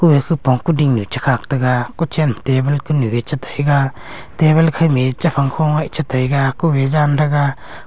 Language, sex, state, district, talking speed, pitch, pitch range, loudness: Wancho, male, Arunachal Pradesh, Longding, 205 wpm, 140 Hz, 130-155 Hz, -16 LUFS